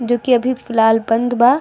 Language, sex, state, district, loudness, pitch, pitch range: Bhojpuri, female, Bihar, East Champaran, -15 LUFS, 240 Hz, 225-250 Hz